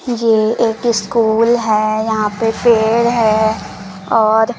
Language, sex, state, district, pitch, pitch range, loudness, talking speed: Hindi, female, Madhya Pradesh, Umaria, 225 Hz, 215-235 Hz, -14 LUFS, 120 wpm